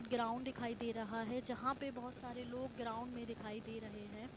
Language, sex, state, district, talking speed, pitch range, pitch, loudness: Hindi, female, Jharkhand, Jamtara, 220 wpm, 225-250 Hz, 235 Hz, -44 LUFS